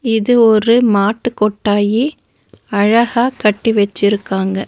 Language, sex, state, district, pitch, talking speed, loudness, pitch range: Tamil, female, Tamil Nadu, Nilgiris, 215 Hz, 90 wpm, -14 LUFS, 205-235 Hz